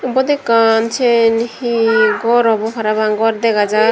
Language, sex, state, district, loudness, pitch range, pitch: Chakma, female, Tripura, Dhalai, -14 LUFS, 220-235 Hz, 225 Hz